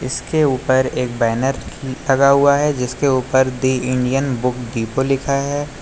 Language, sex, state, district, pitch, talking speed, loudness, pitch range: Hindi, male, Uttar Pradesh, Lucknow, 130 Hz, 155 wpm, -18 LUFS, 125-140 Hz